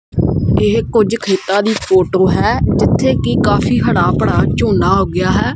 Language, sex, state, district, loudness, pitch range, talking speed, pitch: Punjabi, male, Punjab, Kapurthala, -13 LUFS, 185-220 Hz, 150 wpm, 195 Hz